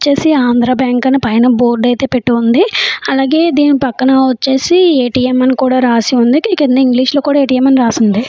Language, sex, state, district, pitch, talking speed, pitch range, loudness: Telugu, female, Andhra Pradesh, Chittoor, 260 Hz, 195 wpm, 245-285 Hz, -11 LUFS